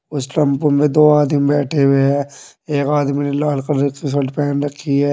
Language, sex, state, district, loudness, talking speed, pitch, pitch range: Hindi, male, Uttar Pradesh, Saharanpur, -16 LUFS, 210 wpm, 145 Hz, 140-150 Hz